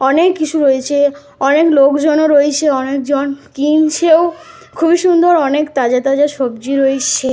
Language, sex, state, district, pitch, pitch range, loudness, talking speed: Bengali, female, Jharkhand, Jamtara, 290 Hz, 275-315 Hz, -13 LUFS, 130 wpm